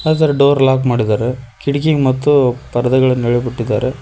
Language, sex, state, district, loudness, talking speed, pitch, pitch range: Kannada, male, Karnataka, Koppal, -14 LUFS, 135 wpm, 130 Hz, 120-140 Hz